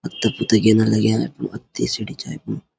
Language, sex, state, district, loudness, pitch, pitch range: Garhwali, male, Uttarakhand, Uttarkashi, -20 LUFS, 110 Hz, 110-115 Hz